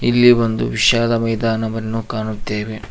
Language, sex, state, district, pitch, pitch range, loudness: Kannada, male, Karnataka, Koppal, 115 Hz, 110-115 Hz, -17 LUFS